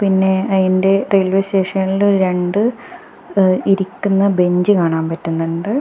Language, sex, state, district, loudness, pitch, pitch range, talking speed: Malayalam, female, Kerala, Kasaragod, -16 LUFS, 190 Hz, 185-195 Hz, 105 wpm